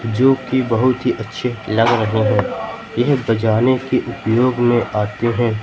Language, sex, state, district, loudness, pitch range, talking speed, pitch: Hindi, male, Madhya Pradesh, Katni, -17 LUFS, 110-125 Hz, 160 wpm, 120 Hz